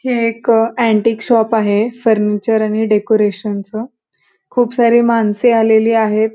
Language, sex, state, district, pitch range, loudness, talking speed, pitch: Marathi, female, Maharashtra, Pune, 215-235 Hz, -14 LUFS, 130 wpm, 225 Hz